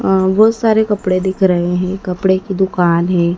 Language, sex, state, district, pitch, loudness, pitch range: Hindi, female, Madhya Pradesh, Dhar, 190 Hz, -14 LUFS, 180-195 Hz